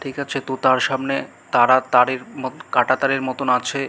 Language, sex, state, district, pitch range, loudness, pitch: Bengali, male, West Bengal, Malda, 130-135 Hz, -19 LUFS, 130 Hz